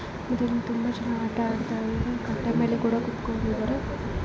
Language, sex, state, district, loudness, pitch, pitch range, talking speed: Kannada, female, Karnataka, Gulbarga, -28 LUFS, 235 Hz, 230-235 Hz, 140 wpm